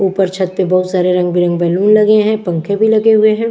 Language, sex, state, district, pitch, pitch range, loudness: Hindi, female, Bihar, West Champaran, 190 Hz, 180-215 Hz, -12 LUFS